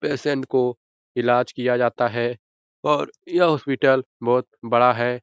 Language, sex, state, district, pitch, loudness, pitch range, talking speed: Hindi, male, Bihar, Jahanabad, 125 Hz, -21 LUFS, 120-135 Hz, 140 wpm